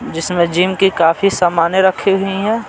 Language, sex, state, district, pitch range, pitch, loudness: Hindi, male, Bihar, Patna, 170-195 Hz, 190 Hz, -14 LUFS